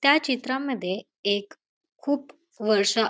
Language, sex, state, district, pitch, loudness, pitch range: Marathi, female, Maharashtra, Dhule, 260 Hz, -26 LUFS, 210-285 Hz